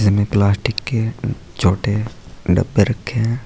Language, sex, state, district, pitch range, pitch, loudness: Hindi, male, Uttar Pradesh, Saharanpur, 100-120 Hz, 110 Hz, -19 LUFS